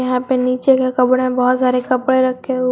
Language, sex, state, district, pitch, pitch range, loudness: Hindi, female, Jharkhand, Garhwa, 255 Hz, 255-260 Hz, -16 LUFS